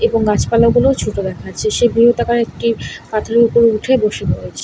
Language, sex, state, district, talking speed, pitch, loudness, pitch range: Bengali, female, West Bengal, Paschim Medinipur, 170 wpm, 235 Hz, -15 LUFS, 230-240 Hz